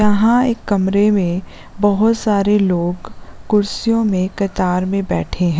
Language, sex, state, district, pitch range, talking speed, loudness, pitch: Hindi, female, Uttarakhand, Uttarkashi, 180-210 Hz, 140 wpm, -16 LUFS, 200 Hz